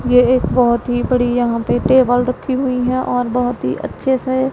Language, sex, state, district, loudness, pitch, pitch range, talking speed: Hindi, female, Punjab, Pathankot, -16 LUFS, 250 Hz, 245-255 Hz, 210 wpm